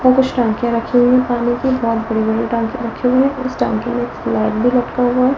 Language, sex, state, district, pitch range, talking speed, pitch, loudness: Hindi, female, Delhi, New Delhi, 230-255 Hz, 270 wpm, 240 Hz, -16 LUFS